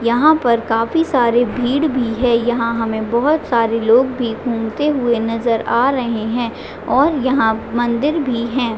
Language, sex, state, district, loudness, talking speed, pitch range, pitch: Hindi, female, Chhattisgarh, Raigarh, -17 LUFS, 155 wpm, 230-260 Hz, 240 Hz